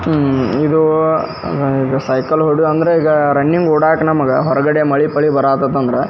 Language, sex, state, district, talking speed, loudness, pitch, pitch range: Kannada, male, Karnataka, Dharwad, 145 wpm, -14 LUFS, 150 Hz, 135-155 Hz